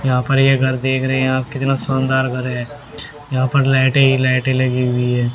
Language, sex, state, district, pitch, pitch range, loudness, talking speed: Hindi, male, Haryana, Rohtak, 130 Hz, 130-135 Hz, -17 LUFS, 225 wpm